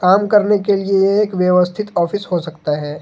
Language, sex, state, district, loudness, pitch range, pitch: Hindi, male, Jharkhand, Ranchi, -16 LUFS, 175-205 Hz, 190 Hz